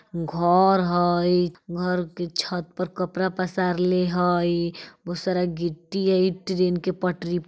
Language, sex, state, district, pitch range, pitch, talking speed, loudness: Bajjika, female, Bihar, Vaishali, 175-185 Hz, 180 Hz, 135 wpm, -24 LUFS